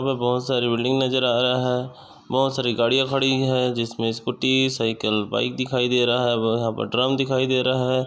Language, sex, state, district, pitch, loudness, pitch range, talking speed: Hindi, male, Maharashtra, Chandrapur, 125 Hz, -22 LUFS, 120-130 Hz, 215 wpm